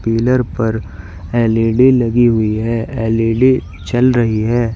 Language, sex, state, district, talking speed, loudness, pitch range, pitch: Hindi, male, Uttar Pradesh, Shamli, 125 wpm, -14 LUFS, 110-120 Hz, 115 Hz